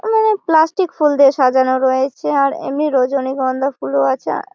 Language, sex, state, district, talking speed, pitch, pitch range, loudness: Bengali, female, West Bengal, Malda, 170 wpm, 275 Hz, 260-315 Hz, -15 LUFS